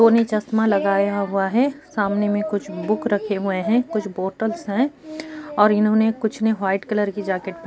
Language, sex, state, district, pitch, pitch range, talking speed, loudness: Hindi, female, Uttar Pradesh, Jyotiba Phule Nagar, 210 Hz, 200-225 Hz, 195 wpm, -21 LUFS